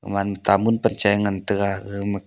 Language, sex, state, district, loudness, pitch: Wancho, male, Arunachal Pradesh, Longding, -21 LUFS, 100 Hz